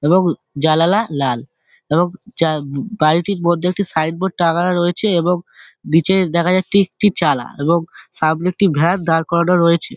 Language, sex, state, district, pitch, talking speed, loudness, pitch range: Bengali, male, West Bengal, Dakshin Dinajpur, 170 Hz, 155 wpm, -17 LUFS, 160-185 Hz